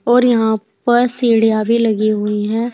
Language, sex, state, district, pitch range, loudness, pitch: Hindi, female, Uttar Pradesh, Saharanpur, 215-240 Hz, -15 LUFS, 225 Hz